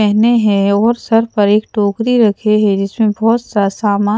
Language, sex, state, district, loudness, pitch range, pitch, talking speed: Hindi, female, Odisha, Sambalpur, -13 LUFS, 205-225 Hz, 210 Hz, 185 wpm